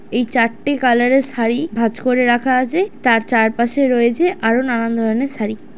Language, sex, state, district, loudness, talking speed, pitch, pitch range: Bengali, female, West Bengal, Dakshin Dinajpur, -16 LUFS, 185 wpm, 240 Hz, 230-260 Hz